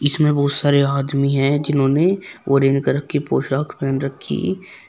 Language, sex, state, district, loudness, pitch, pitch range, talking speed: Hindi, female, Uttar Pradesh, Shamli, -18 LUFS, 140 Hz, 135-145 Hz, 160 wpm